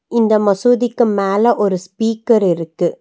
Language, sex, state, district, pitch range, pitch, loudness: Tamil, female, Tamil Nadu, Nilgiris, 195-235 Hz, 215 Hz, -15 LUFS